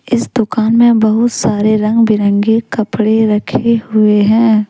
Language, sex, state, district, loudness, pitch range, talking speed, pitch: Hindi, female, Jharkhand, Deoghar, -12 LUFS, 215-230 Hz, 140 wpm, 220 Hz